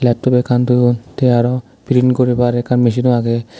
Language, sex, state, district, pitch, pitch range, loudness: Chakma, male, Tripura, Dhalai, 125 Hz, 120-125 Hz, -14 LUFS